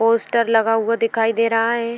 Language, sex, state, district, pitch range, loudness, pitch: Hindi, female, Uttar Pradesh, Etah, 225-230 Hz, -18 LUFS, 230 Hz